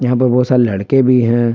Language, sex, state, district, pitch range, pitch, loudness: Hindi, male, Jharkhand, Palamu, 120-125 Hz, 125 Hz, -13 LUFS